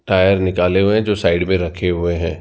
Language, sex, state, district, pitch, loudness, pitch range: Hindi, male, Rajasthan, Jaipur, 90 Hz, -16 LUFS, 85-95 Hz